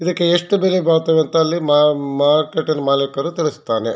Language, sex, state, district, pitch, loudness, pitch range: Kannada, male, Karnataka, Shimoga, 155 Hz, -16 LUFS, 145-170 Hz